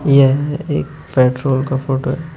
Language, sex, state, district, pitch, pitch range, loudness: Hindi, male, Uttar Pradesh, Shamli, 135 Hz, 130-145 Hz, -16 LUFS